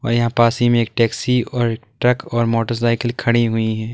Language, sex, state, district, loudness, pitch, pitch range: Hindi, male, Uttar Pradesh, Lalitpur, -18 LUFS, 120 Hz, 115-120 Hz